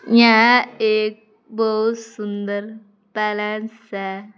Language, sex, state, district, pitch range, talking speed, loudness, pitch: Hindi, female, Uttar Pradesh, Saharanpur, 210-225 Hz, 80 wpm, -19 LUFS, 215 Hz